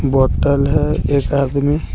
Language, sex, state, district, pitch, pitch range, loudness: Hindi, male, Jharkhand, Deoghar, 140 Hz, 140-145 Hz, -16 LUFS